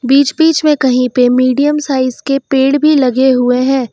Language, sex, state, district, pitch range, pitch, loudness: Hindi, female, Uttar Pradesh, Lucknow, 255-285 Hz, 265 Hz, -11 LUFS